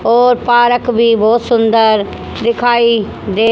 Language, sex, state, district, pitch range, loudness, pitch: Hindi, female, Haryana, Jhajjar, 225-240 Hz, -12 LUFS, 235 Hz